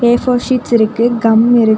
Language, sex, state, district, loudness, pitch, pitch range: Tamil, female, Tamil Nadu, Nilgiris, -12 LUFS, 235 Hz, 225-245 Hz